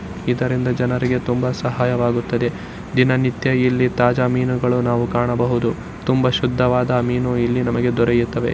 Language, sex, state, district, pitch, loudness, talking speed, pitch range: Kannada, male, Karnataka, Shimoga, 125 Hz, -19 LUFS, 110 wpm, 120-125 Hz